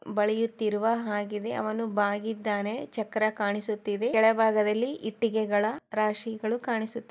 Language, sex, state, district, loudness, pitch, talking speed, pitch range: Kannada, female, Karnataka, Chamarajanagar, -28 LUFS, 220 Hz, 95 wpm, 210-225 Hz